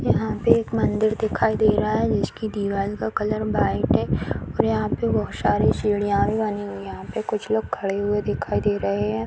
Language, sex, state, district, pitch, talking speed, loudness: Hindi, female, Uttar Pradesh, Deoria, 205 Hz, 215 wpm, -23 LUFS